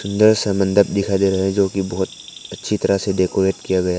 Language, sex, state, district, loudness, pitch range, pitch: Hindi, male, Arunachal Pradesh, Lower Dibang Valley, -18 LUFS, 95-100 Hz, 95 Hz